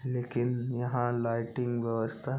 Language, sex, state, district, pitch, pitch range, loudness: Hindi, male, Chhattisgarh, Rajnandgaon, 120 Hz, 115-125 Hz, -32 LUFS